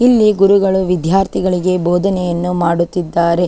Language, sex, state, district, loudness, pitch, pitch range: Kannada, female, Karnataka, Chamarajanagar, -14 LUFS, 180 Hz, 175-195 Hz